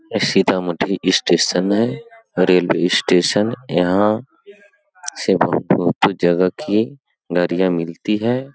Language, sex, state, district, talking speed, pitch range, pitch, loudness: Hindi, male, Bihar, Sitamarhi, 90 wpm, 90-140 Hz, 105 Hz, -17 LUFS